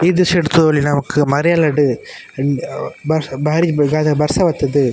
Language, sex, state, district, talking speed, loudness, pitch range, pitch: Tulu, male, Karnataka, Dakshina Kannada, 120 wpm, -15 LUFS, 140-165 Hz, 150 Hz